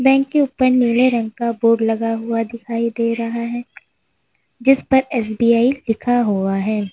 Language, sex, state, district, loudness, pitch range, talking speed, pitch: Hindi, female, Uttar Pradesh, Lalitpur, -18 LUFS, 225-255 Hz, 165 wpm, 235 Hz